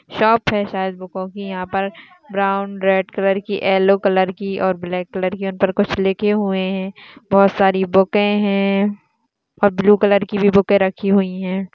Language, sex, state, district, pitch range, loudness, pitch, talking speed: Hindi, female, Maharashtra, Sindhudurg, 190-205 Hz, -18 LUFS, 195 Hz, 185 wpm